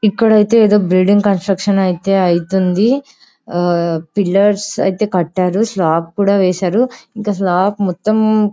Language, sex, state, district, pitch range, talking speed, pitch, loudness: Telugu, female, Telangana, Karimnagar, 185-215 Hz, 120 wpm, 200 Hz, -14 LUFS